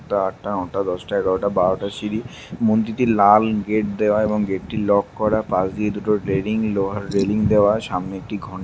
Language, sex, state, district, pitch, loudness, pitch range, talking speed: Bengali, male, West Bengal, Malda, 105 Hz, -20 LUFS, 100-110 Hz, 185 wpm